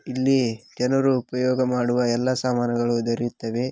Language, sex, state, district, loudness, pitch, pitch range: Kannada, male, Karnataka, Raichur, -23 LUFS, 125 Hz, 120-130 Hz